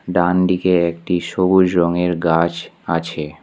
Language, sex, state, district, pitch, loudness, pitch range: Bengali, male, West Bengal, Alipurduar, 85 Hz, -17 LUFS, 85-90 Hz